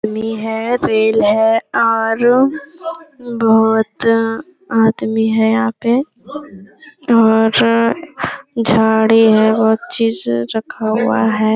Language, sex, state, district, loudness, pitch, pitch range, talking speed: Hindi, female, Bihar, Jamui, -14 LUFS, 225 Hz, 220-240 Hz, 100 wpm